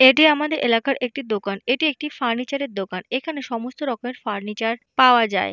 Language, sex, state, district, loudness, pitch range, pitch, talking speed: Bengali, female, West Bengal, Purulia, -21 LUFS, 225-280 Hz, 250 Hz, 165 wpm